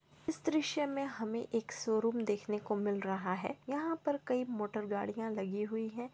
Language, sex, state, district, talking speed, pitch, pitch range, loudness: Hindi, female, Chhattisgarh, Bilaspur, 185 wpm, 225 Hz, 210-275 Hz, -37 LUFS